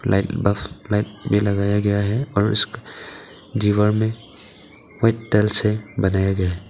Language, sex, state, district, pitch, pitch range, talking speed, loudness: Hindi, male, Arunachal Pradesh, Papum Pare, 105 Hz, 100-105 Hz, 150 wpm, -20 LUFS